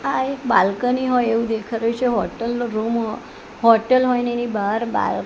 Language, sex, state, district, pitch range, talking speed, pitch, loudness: Gujarati, female, Gujarat, Gandhinagar, 225-245 Hz, 185 wpm, 235 Hz, -20 LUFS